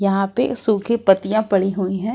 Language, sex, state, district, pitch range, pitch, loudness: Hindi, female, Jharkhand, Ranchi, 195-220 Hz, 195 Hz, -19 LUFS